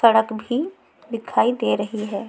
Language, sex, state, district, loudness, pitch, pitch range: Hindi, female, Chhattisgarh, Raipur, -22 LUFS, 225 Hz, 220-245 Hz